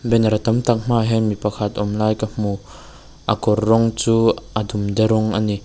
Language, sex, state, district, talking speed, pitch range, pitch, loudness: Mizo, male, Mizoram, Aizawl, 200 wpm, 105-115 Hz, 110 Hz, -19 LUFS